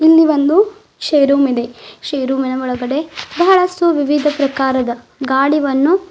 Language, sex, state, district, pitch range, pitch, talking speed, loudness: Kannada, female, Karnataka, Bidar, 265-320 Hz, 285 Hz, 120 wpm, -15 LUFS